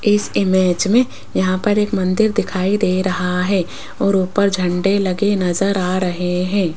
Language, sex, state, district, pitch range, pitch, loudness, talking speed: Hindi, female, Rajasthan, Jaipur, 180-205 Hz, 190 Hz, -17 LUFS, 170 wpm